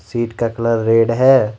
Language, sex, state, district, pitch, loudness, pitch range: Hindi, male, Jharkhand, Ranchi, 115 Hz, -15 LUFS, 115-120 Hz